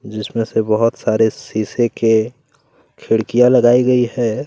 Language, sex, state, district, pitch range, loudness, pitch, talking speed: Hindi, male, Chhattisgarh, Kabirdham, 110-125 Hz, -16 LUFS, 115 Hz, 135 wpm